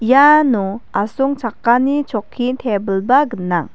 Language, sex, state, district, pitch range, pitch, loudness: Garo, female, Meghalaya, West Garo Hills, 200-270 Hz, 235 Hz, -16 LUFS